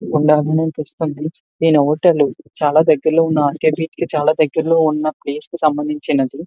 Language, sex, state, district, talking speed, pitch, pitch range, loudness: Telugu, male, Andhra Pradesh, Visakhapatnam, 45 wpm, 155 Hz, 150-160 Hz, -16 LUFS